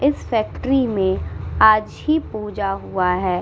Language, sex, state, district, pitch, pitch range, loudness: Hindi, female, Uttar Pradesh, Muzaffarnagar, 210 Hz, 180-230 Hz, -20 LUFS